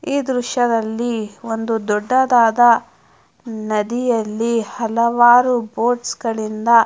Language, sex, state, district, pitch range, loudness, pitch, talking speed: Kannada, female, Karnataka, Mysore, 220-240 Hz, -17 LUFS, 230 Hz, 80 wpm